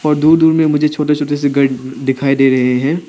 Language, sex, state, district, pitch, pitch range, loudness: Hindi, male, Arunachal Pradesh, Papum Pare, 145 Hz, 135-150 Hz, -13 LUFS